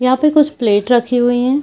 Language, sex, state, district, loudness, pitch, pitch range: Hindi, female, Bihar, Purnia, -14 LUFS, 250 Hz, 245-280 Hz